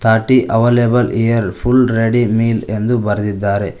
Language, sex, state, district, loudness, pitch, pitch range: Kannada, male, Karnataka, Koppal, -14 LUFS, 115 Hz, 105-120 Hz